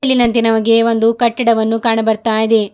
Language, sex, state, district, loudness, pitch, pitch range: Kannada, female, Karnataka, Bidar, -13 LUFS, 230 Hz, 225-235 Hz